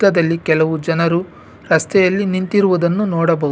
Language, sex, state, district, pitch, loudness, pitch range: Kannada, male, Karnataka, Bangalore, 170 Hz, -16 LUFS, 165-190 Hz